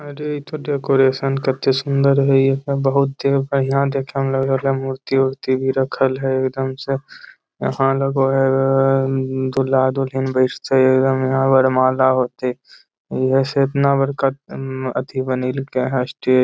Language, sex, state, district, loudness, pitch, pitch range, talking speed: Magahi, male, Bihar, Lakhisarai, -18 LUFS, 135 Hz, 130-135 Hz, 140 wpm